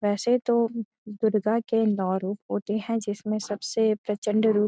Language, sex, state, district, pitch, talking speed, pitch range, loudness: Hindi, female, Uttarakhand, Uttarkashi, 215 Hz, 165 wpm, 210-225 Hz, -26 LUFS